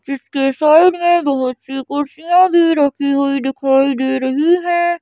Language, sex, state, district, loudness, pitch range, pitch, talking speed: Hindi, female, Madhya Pradesh, Bhopal, -15 LUFS, 270-340 Hz, 280 Hz, 155 wpm